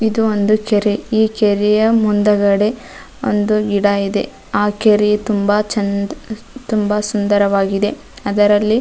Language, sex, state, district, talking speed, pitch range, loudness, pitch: Kannada, female, Karnataka, Dharwad, 115 wpm, 205-215 Hz, -16 LUFS, 210 Hz